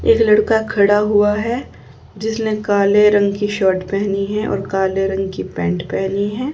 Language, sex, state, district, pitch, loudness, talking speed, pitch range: Hindi, female, Haryana, Rohtak, 205 Hz, -17 LUFS, 175 wpm, 195-215 Hz